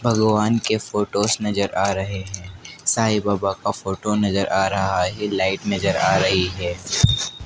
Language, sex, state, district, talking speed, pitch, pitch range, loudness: Hindi, male, Madhya Pradesh, Dhar, 160 wpm, 100 Hz, 95-105 Hz, -20 LUFS